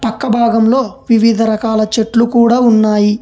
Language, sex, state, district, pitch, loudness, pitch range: Telugu, male, Telangana, Hyderabad, 225 Hz, -12 LUFS, 220-235 Hz